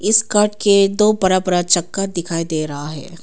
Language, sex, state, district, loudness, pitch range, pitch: Hindi, female, Arunachal Pradesh, Papum Pare, -16 LUFS, 170-210 Hz, 185 Hz